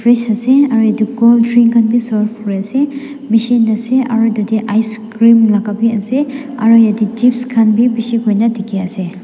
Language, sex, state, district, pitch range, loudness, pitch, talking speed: Nagamese, female, Nagaland, Dimapur, 220-240 Hz, -12 LUFS, 230 Hz, 160 wpm